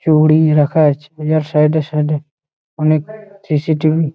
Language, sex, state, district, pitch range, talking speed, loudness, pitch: Bengali, male, West Bengal, Malda, 150-155 Hz, 130 wpm, -15 LUFS, 155 Hz